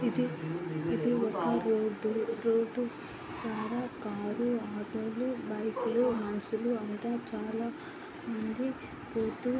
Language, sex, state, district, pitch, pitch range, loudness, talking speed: Telugu, female, Andhra Pradesh, Anantapur, 225 Hz, 215-245 Hz, -33 LUFS, 85 wpm